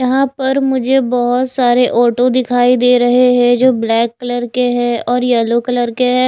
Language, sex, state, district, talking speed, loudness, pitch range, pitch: Hindi, female, Chhattisgarh, Raipur, 190 wpm, -13 LUFS, 245-255 Hz, 245 Hz